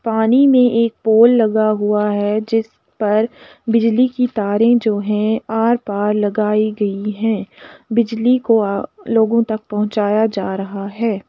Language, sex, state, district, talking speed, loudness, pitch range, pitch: Hindi, female, Uttar Pradesh, Jalaun, 145 wpm, -16 LUFS, 210-230 Hz, 220 Hz